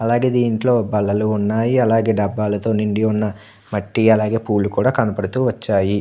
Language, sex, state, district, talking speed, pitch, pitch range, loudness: Telugu, male, Andhra Pradesh, Anantapur, 140 wpm, 110 Hz, 105-115 Hz, -18 LUFS